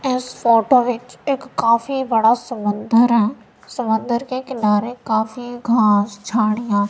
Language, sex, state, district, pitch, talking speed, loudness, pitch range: Hindi, female, Punjab, Kapurthala, 235 Hz, 120 wpm, -18 LUFS, 220-245 Hz